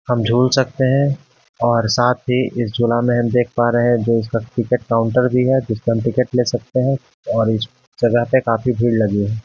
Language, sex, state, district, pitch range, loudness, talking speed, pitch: Hindi, male, Bihar, Patna, 115-125 Hz, -17 LUFS, 220 wpm, 120 Hz